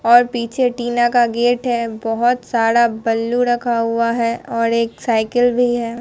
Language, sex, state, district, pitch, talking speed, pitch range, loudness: Hindi, female, Bihar, Katihar, 235 Hz, 170 wpm, 230-245 Hz, -17 LUFS